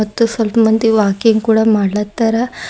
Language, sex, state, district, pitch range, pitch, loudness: Kannada, female, Karnataka, Bidar, 215-225 Hz, 220 Hz, -14 LUFS